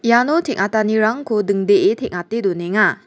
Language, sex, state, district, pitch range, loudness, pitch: Garo, female, Meghalaya, West Garo Hills, 200-240 Hz, -17 LUFS, 220 Hz